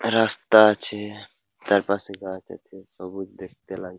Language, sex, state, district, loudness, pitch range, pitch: Bengali, male, West Bengal, Paschim Medinipur, -21 LUFS, 95-105 Hz, 100 Hz